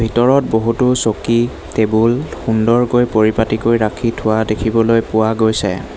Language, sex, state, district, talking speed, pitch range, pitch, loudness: Assamese, male, Assam, Hailakandi, 110 wpm, 110-120 Hz, 115 Hz, -15 LUFS